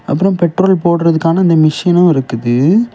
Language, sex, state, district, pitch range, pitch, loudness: Tamil, male, Tamil Nadu, Kanyakumari, 155-185 Hz, 170 Hz, -12 LUFS